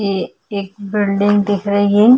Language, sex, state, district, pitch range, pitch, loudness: Hindi, female, Chhattisgarh, Kabirdham, 200-205 Hz, 205 Hz, -17 LUFS